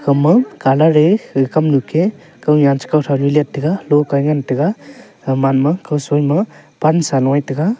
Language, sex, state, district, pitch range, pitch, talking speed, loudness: Wancho, male, Arunachal Pradesh, Longding, 140-160 Hz, 150 Hz, 170 wpm, -15 LUFS